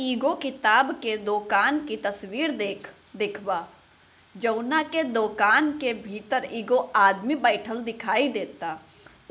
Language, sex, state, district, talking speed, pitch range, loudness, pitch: Bhojpuri, female, Bihar, Gopalganj, 130 wpm, 205-270 Hz, -25 LUFS, 225 Hz